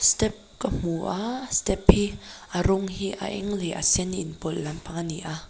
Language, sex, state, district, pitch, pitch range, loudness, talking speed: Mizo, female, Mizoram, Aizawl, 185 Hz, 165-200 Hz, -26 LUFS, 205 wpm